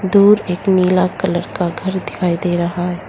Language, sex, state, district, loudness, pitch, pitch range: Hindi, female, Arunachal Pradesh, Lower Dibang Valley, -16 LUFS, 180 Hz, 175-190 Hz